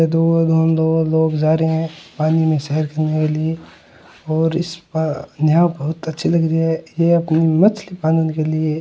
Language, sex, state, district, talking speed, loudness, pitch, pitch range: Hindi, male, Rajasthan, Churu, 95 wpm, -17 LUFS, 160 Hz, 155-165 Hz